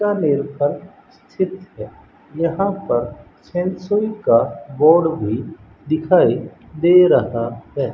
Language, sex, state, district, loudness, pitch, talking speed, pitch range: Hindi, male, Rajasthan, Bikaner, -18 LUFS, 160 Hz, 75 wpm, 120-190 Hz